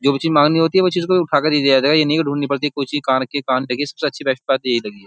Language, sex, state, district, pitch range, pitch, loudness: Hindi, male, Uttar Pradesh, Jyotiba Phule Nagar, 130-155 Hz, 140 Hz, -17 LUFS